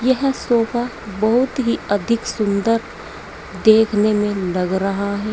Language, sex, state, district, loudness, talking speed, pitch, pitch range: Hindi, female, Uttar Pradesh, Saharanpur, -18 LUFS, 125 wpm, 215 Hz, 200-235 Hz